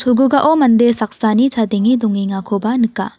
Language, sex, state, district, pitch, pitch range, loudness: Garo, female, Meghalaya, West Garo Hills, 230 Hz, 210-250 Hz, -14 LUFS